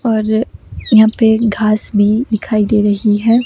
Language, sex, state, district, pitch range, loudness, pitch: Hindi, female, Himachal Pradesh, Shimla, 210-225 Hz, -13 LUFS, 220 Hz